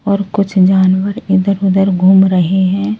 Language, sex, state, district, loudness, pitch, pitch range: Hindi, male, Delhi, New Delhi, -12 LUFS, 190 Hz, 190-200 Hz